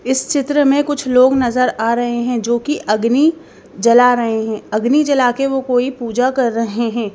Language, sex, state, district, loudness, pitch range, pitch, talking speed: Hindi, female, Bihar, Patna, -15 LUFS, 235-270 Hz, 245 Hz, 200 wpm